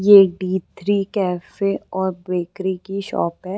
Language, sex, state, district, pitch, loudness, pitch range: Hindi, female, Uttar Pradesh, Gorakhpur, 190 Hz, -20 LUFS, 180-195 Hz